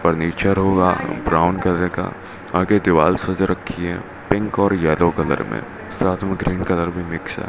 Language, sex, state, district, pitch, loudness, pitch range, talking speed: Hindi, male, Rajasthan, Bikaner, 90 Hz, -19 LUFS, 85-95 Hz, 175 wpm